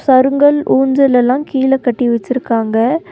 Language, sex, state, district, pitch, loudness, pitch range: Tamil, female, Tamil Nadu, Nilgiris, 260 Hz, -13 LUFS, 245-275 Hz